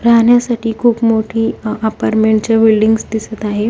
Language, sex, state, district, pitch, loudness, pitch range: Marathi, female, Maharashtra, Pune, 225 Hz, -13 LUFS, 220-230 Hz